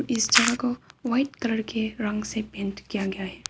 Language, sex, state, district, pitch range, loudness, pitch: Hindi, female, Arunachal Pradesh, Papum Pare, 210-245 Hz, -25 LUFS, 220 Hz